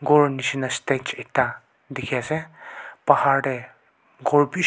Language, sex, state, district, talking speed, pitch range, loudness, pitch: Nagamese, male, Nagaland, Kohima, 130 wpm, 130-150 Hz, -23 LUFS, 140 Hz